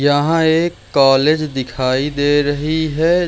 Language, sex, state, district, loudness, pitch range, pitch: Hindi, male, Bihar, Jamui, -15 LUFS, 140-160 Hz, 145 Hz